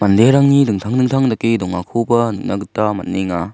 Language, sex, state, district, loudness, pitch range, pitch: Garo, male, Meghalaya, South Garo Hills, -16 LUFS, 100-125 Hz, 115 Hz